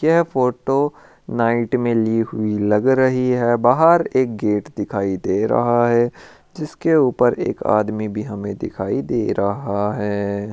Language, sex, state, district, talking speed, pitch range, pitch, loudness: Hindi, male, Rajasthan, Churu, 150 wpm, 105-130 Hz, 120 Hz, -19 LUFS